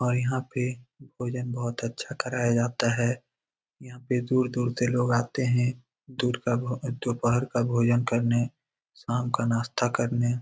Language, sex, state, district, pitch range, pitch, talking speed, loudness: Hindi, male, Bihar, Lakhisarai, 120-125 Hz, 125 Hz, 165 wpm, -27 LUFS